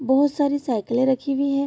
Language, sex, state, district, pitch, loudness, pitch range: Hindi, female, Bihar, Vaishali, 275 Hz, -22 LUFS, 260-280 Hz